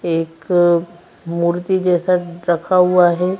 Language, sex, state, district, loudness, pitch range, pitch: Hindi, female, Madhya Pradesh, Bhopal, -16 LUFS, 170-180 Hz, 175 Hz